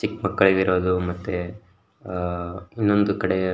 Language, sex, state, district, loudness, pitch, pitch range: Kannada, male, Karnataka, Shimoga, -23 LUFS, 95 Hz, 90-95 Hz